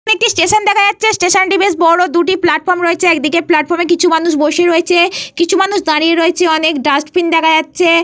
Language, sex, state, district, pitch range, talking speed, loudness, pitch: Bengali, female, Jharkhand, Jamtara, 325-365 Hz, 185 wpm, -11 LUFS, 345 Hz